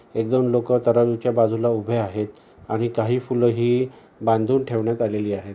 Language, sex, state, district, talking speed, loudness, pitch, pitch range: Marathi, male, Maharashtra, Pune, 160 wpm, -22 LUFS, 115 Hz, 110-120 Hz